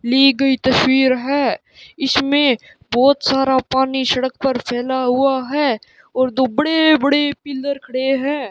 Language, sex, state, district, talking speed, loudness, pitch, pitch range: Hindi, male, Rajasthan, Bikaner, 140 wpm, -17 LUFS, 265 Hz, 260-280 Hz